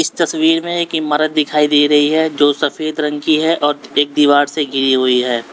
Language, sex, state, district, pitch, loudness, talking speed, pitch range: Hindi, male, Uttar Pradesh, Lalitpur, 150 Hz, -14 LUFS, 215 wpm, 145-160 Hz